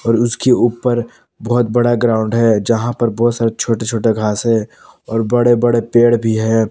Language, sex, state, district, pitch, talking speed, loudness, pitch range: Hindi, male, Jharkhand, Palamu, 115 Hz, 190 wpm, -15 LUFS, 115-120 Hz